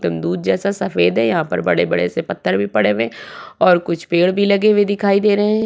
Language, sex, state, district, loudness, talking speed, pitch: Hindi, female, Uttarakhand, Tehri Garhwal, -16 LUFS, 245 wpm, 170 Hz